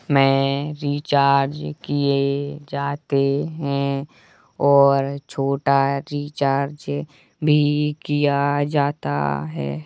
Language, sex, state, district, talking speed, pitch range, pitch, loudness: Hindi, male, Uttar Pradesh, Hamirpur, 75 wpm, 135-145 Hz, 140 Hz, -21 LUFS